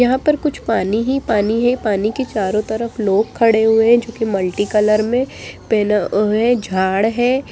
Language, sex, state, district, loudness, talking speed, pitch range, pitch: Hindi, female, Bihar, Jamui, -16 LUFS, 190 wpm, 210-245 Hz, 220 Hz